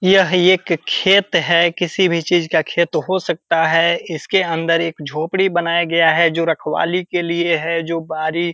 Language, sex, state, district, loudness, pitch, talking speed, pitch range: Hindi, male, Bihar, Purnia, -16 LUFS, 170 Hz, 190 wpm, 165-175 Hz